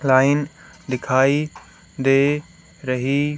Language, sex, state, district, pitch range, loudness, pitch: Hindi, male, Haryana, Rohtak, 130-145 Hz, -20 LUFS, 140 Hz